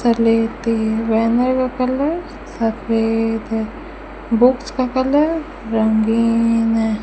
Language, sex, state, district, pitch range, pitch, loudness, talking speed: Hindi, female, Rajasthan, Bikaner, 225-255 Hz, 230 Hz, -18 LUFS, 110 wpm